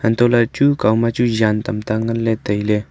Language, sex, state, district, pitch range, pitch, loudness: Wancho, male, Arunachal Pradesh, Longding, 105-120 Hz, 115 Hz, -17 LUFS